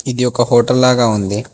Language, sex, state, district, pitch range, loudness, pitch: Telugu, male, Telangana, Hyderabad, 115-125 Hz, -13 LUFS, 120 Hz